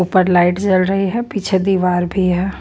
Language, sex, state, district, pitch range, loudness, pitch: Hindi, female, Bihar, Patna, 180-195 Hz, -16 LUFS, 185 Hz